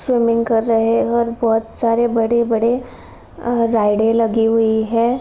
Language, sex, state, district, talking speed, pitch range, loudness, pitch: Hindi, female, Uttar Pradesh, Jalaun, 140 wpm, 225-235 Hz, -16 LUFS, 230 Hz